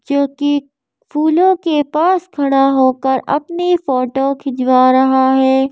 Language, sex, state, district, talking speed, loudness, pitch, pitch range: Hindi, female, Madhya Pradesh, Bhopal, 125 wpm, -14 LUFS, 275 Hz, 265-305 Hz